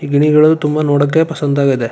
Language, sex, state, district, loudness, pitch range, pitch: Kannada, male, Karnataka, Chamarajanagar, -13 LUFS, 145-155 Hz, 150 Hz